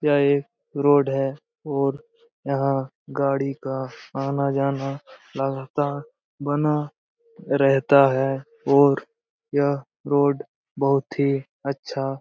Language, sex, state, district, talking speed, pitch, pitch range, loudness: Hindi, male, Bihar, Jamui, 100 wpm, 140 Hz, 135-145 Hz, -23 LUFS